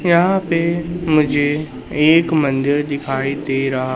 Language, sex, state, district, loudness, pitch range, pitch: Hindi, male, Madhya Pradesh, Katni, -17 LUFS, 135-165 Hz, 150 Hz